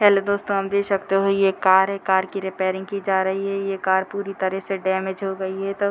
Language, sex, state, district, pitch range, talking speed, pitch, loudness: Hindi, female, Bihar, Muzaffarpur, 190-195 Hz, 285 wpm, 195 Hz, -22 LUFS